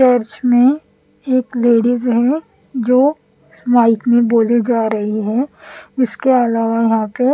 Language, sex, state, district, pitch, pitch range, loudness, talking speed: Hindi, female, Punjab, Pathankot, 240 Hz, 230-255 Hz, -15 LUFS, 125 wpm